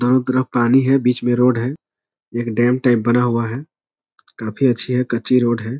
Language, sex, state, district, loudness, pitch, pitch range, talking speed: Hindi, male, Bihar, Araria, -17 LUFS, 125 Hz, 120-130 Hz, 205 wpm